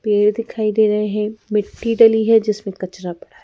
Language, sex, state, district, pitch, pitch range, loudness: Hindi, female, Madhya Pradesh, Bhopal, 210 Hz, 210-220 Hz, -17 LUFS